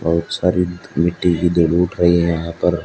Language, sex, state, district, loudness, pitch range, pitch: Hindi, male, Haryana, Charkhi Dadri, -17 LUFS, 85-90 Hz, 85 Hz